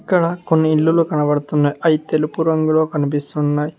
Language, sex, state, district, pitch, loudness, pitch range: Telugu, male, Telangana, Mahabubabad, 155 Hz, -17 LUFS, 150-160 Hz